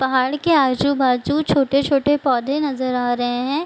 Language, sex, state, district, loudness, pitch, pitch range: Hindi, female, Bihar, Sitamarhi, -18 LUFS, 275 Hz, 255-290 Hz